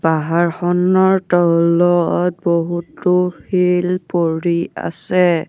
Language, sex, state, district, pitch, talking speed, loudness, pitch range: Assamese, male, Assam, Sonitpur, 175 Hz, 65 wpm, -16 LUFS, 170-180 Hz